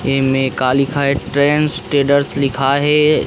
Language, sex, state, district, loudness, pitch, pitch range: Chhattisgarhi, male, Chhattisgarh, Rajnandgaon, -15 LUFS, 140 Hz, 135-145 Hz